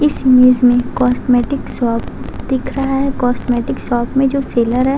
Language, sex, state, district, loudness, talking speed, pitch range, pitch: Hindi, female, Uttar Pradesh, Gorakhpur, -15 LUFS, 180 wpm, 245-270 Hz, 250 Hz